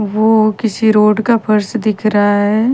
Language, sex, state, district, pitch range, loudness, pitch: Hindi, female, Haryana, Rohtak, 210-220 Hz, -13 LUFS, 215 Hz